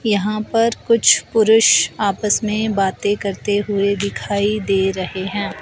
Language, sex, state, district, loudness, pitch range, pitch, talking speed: Hindi, female, Himachal Pradesh, Shimla, -17 LUFS, 200-215 Hz, 205 Hz, 140 wpm